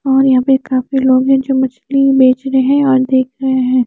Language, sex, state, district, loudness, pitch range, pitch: Hindi, female, Chandigarh, Chandigarh, -12 LUFS, 260-270 Hz, 265 Hz